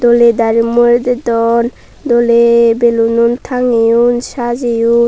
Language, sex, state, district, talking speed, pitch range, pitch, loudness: Chakma, female, Tripura, Unakoti, 85 wpm, 230-240 Hz, 235 Hz, -11 LUFS